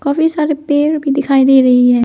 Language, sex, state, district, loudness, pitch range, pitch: Hindi, female, Arunachal Pradesh, Lower Dibang Valley, -12 LUFS, 265-305 Hz, 285 Hz